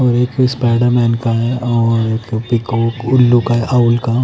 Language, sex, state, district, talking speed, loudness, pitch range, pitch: Hindi, male, Himachal Pradesh, Shimla, 185 wpm, -14 LUFS, 115-125 Hz, 120 Hz